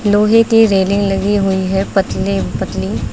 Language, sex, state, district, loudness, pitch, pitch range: Hindi, female, Uttar Pradesh, Lucknow, -14 LUFS, 200 Hz, 195-210 Hz